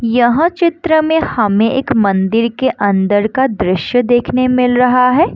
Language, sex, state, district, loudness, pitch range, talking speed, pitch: Hindi, female, Bihar, Madhepura, -13 LUFS, 220-265 Hz, 155 wpm, 245 Hz